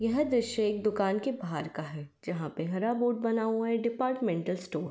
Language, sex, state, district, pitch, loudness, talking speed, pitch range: Hindi, female, Uttar Pradesh, Varanasi, 215 Hz, -31 LUFS, 220 wpm, 170-235 Hz